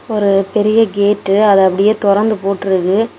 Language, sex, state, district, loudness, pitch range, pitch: Tamil, female, Tamil Nadu, Kanyakumari, -13 LUFS, 195-215 Hz, 200 Hz